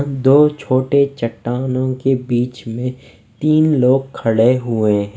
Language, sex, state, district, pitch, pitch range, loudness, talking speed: Hindi, male, Odisha, Nuapada, 130 Hz, 115-135 Hz, -16 LUFS, 130 wpm